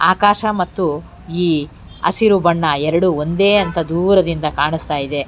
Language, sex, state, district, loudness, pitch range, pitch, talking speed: Kannada, female, Karnataka, Bangalore, -16 LUFS, 155-190 Hz, 170 Hz, 115 wpm